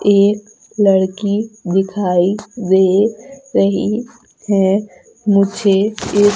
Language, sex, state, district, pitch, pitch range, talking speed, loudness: Hindi, female, Madhya Pradesh, Umaria, 205 Hz, 195-215 Hz, 75 wpm, -16 LUFS